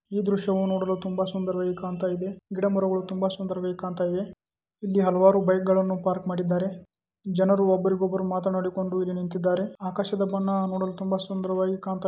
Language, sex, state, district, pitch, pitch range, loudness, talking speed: Kannada, male, Karnataka, Chamarajanagar, 190 Hz, 185-190 Hz, -26 LUFS, 155 wpm